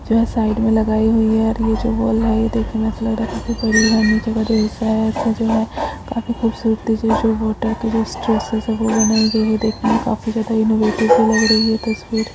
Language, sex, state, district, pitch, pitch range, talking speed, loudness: Hindi, female, Maharashtra, Aurangabad, 225 Hz, 220-225 Hz, 145 wpm, -17 LUFS